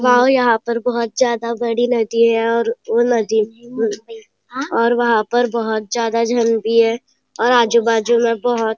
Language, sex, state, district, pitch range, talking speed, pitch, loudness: Hindi, female, Maharashtra, Nagpur, 230-240 Hz, 170 wpm, 235 Hz, -17 LUFS